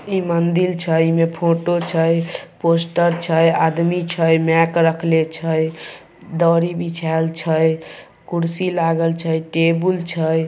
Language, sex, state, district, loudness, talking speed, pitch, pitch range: Maithili, male, Bihar, Samastipur, -18 LUFS, 130 wpm, 165 Hz, 160-170 Hz